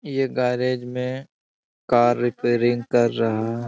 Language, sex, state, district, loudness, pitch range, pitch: Hindi, male, Bihar, Bhagalpur, -22 LUFS, 120-125 Hz, 120 Hz